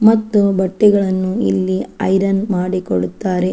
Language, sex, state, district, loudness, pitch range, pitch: Kannada, female, Karnataka, Chamarajanagar, -16 LUFS, 180-200 Hz, 190 Hz